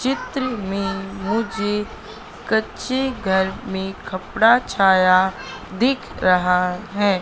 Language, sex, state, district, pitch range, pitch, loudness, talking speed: Hindi, female, Madhya Pradesh, Katni, 190-230 Hz, 195 Hz, -20 LUFS, 90 wpm